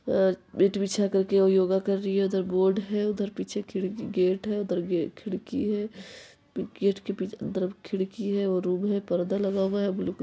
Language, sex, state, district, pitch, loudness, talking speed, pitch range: Hindi, female, Bihar, Vaishali, 195 Hz, -27 LUFS, 210 wpm, 190-205 Hz